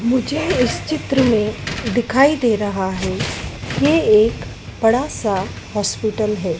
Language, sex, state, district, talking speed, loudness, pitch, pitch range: Hindi, female, Madhya Pradesh, Dhar, 125 wpm, -18 LUFS, 230 Hz, 210-275 Hz